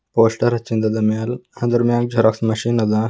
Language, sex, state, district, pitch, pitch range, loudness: Kannada, male, Karnataka, Bidar, 115 Hz, 110-120 Hz, -18 LUFS